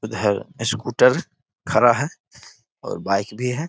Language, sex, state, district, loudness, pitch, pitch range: Hindi, male, Bihar, East Champaran, -21 LUFS, 105 Hz, 100-125 Hz